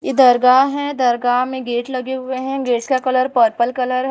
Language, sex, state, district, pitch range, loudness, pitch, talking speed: Hindi, female, Maharashtra, Mumbai Suburban, 245-260 Hz, -17 LUFS, 255 Hz, 205 wpm